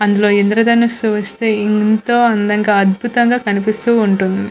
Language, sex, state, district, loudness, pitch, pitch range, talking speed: Telugu, female, Andhra Pradesh, Visakhapatnam, -14 LUFS, 215 Hz, 205-235 Hz, 105 wpm